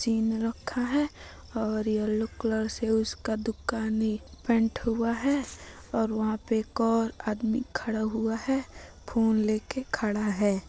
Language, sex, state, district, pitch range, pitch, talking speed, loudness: Bhojpuri, female, Bihar, Gopalganj, 220-230 Hz, 225 Hz, 145 wpm, -29 LUFS